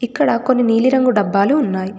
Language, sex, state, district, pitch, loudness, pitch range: Telugu, female, Telangana, Komaram Bheem, 240 Hz, -15 LUFS, 200-255 Hz